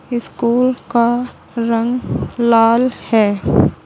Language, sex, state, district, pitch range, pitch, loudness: Hindi, female, Uttar Pradesh, Saharanpur, 230-245 Hz, 235 Hz, -16 LUFS